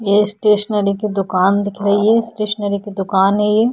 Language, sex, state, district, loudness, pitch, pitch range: Hindi, female, Uttar Pradesh, Budaun, -16 LUFS, 205 Hz, 200-210 Hz